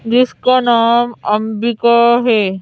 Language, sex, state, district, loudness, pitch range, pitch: Hindi, female, Madhya Pradesh, Bhopal, -13 LUFS, 220-240 Hz, 235 Hz